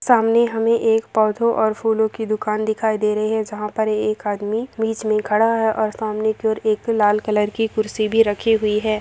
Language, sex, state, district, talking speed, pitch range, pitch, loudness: Hindi, female, Bihar, Begusarai, 220 wpm, 215-225 Hz, 220 Hz, -19 LUFS